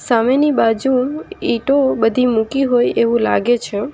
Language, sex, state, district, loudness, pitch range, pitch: Gujarati, female, Gujarat, Valsad, -16 LUFS, 230-275 Hz, 250 Hz